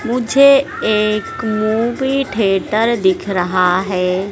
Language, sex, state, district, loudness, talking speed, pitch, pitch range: Hindi, female, Madhya Pradesh, Dhar, -15 LUFS, 95 wpm, 215 Hz, 190-235 Hz